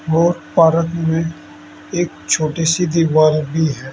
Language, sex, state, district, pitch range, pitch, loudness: Hindi, male, Uttar Pradesh, Saharanpur, 155-165 Hz, 160 Hz, -16 LUFS